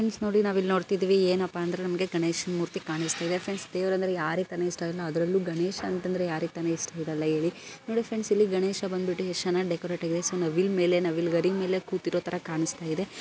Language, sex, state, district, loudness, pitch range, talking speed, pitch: Kannada, female, Karnataka, Belgaum, -28 LUFS, 170-190 Hz, 170 wpm, 180 Hz